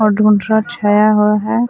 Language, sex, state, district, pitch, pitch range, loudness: Chhattisgarhi, female, Chhattisgarh, Sarguja, 215 Hz, 210-220 Hz, -13 LUFS